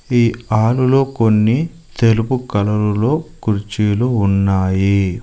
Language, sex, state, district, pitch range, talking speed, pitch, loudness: Telugu, male, Telangana, Mahabubabad, 105-125 Hz, 80 wpm, 115 Hz, -16 LUFS